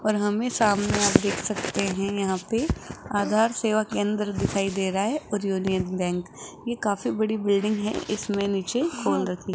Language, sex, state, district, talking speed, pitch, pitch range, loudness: Hindi, female, Rajasthan, Jaipur, 180 wpm, 205 Hz, 195-215 Hz, -25 LUFS